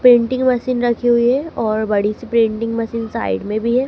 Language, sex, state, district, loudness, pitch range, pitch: Hindi, female, Madhya Pradesh, Dhar, -17 LUFS, 225-245 Hz, 235 Hz